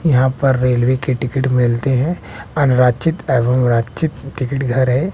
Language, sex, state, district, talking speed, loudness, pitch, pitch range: Hindi, male, Bihar, West Champaran, 150 wpm, -16 LUFS, 130 Hz, 125-135 Hz